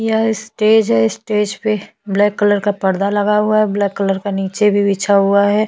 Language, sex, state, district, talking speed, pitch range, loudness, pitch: Hindi, female, Chhattisgarh, Bastar, 210 wpm, 200-215 Hz, -15 LUFS, 205 Hz